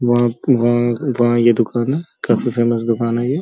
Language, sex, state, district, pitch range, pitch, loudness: Hindi, male, Uttar Pradesh, Gorakhpur, 120-125 Hz, 120 Hz, -17 LUFS